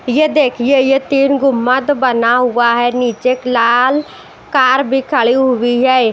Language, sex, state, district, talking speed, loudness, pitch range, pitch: Hindi, female, Bihar, West Champaran, 155 wpm, -13 LUFS, 245-275 Hz, 255 Hz